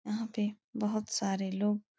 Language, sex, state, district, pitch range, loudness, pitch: Hindi, female, Uttar Pradesh, Etah, 205-220 Hz, -34 LUFS, 210 Hz